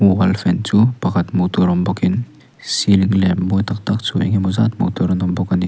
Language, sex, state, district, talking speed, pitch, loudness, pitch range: Mizo, male, Mizoram, Aizawl, 245 wpm, 95 Hz, -17 LUFS, 90-100 Hz